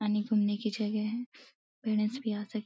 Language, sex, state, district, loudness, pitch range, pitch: Hindi, female, Uttar Pradesh, Deoria, -32 LUFS, 210-220 Hz, 215 Hz